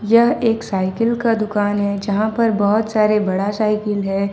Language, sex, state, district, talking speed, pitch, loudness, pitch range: Hindi, female, Jharkhand, Ranchi, 180 wpm, 210 Hz, -18 LUFS, 200-225 Hz